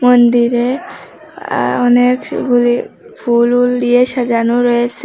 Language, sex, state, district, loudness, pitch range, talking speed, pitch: Bengali, female, Assam, Hailakandi, -13 LUFS, 240-245 Hz, 105 wpm, 245 Hz